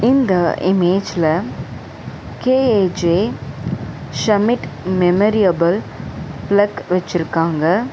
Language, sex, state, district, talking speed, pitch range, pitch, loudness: Tamil, female, Tamil Nadu, Chennai, 55 wpm, 170-210 Hz, 185 Hz, -17 LUFS